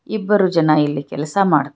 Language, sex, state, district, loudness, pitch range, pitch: Kannada, female, Karnataka, Bangalore, -17 LUFS, 150-195 Hz, 155 Hz